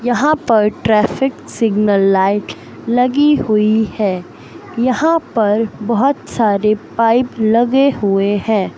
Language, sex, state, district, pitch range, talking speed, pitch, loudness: Hindi, male, Madhya Pradesh, Katni, 210-250 Hz, 110 wpm, 225 Hz, -15 LUFS